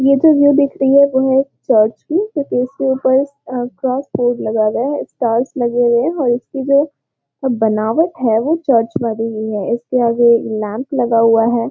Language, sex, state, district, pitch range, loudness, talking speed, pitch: Hindi, female, Chhattisgarh, Korba, 230-275 Hz, -15 LUFS, 190 wpm, 250 Hz